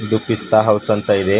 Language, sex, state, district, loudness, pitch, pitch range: Kannada, male, Karnataka, Bidar, -16 LUFS, 105 Hz, 105-110 Hz